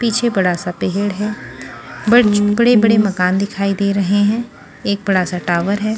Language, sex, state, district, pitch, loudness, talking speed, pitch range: Hindi, female, Punjab, Pathankot, 200 Hz, -16 LUFS, 170 wpm, 180-215 Hz